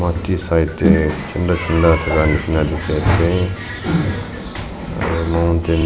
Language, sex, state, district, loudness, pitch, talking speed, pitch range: Nagamese, male, Nagaland, Dimapur, -18 LUFS, 85 Hz, 70 wpm, 80-95 Hz